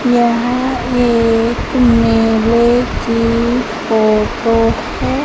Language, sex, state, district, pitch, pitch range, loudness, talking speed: Hindi, female, Madhya Pradesh, Katni, 235 Hz, 225-240 Hz, -13 LUFS, 70 wpm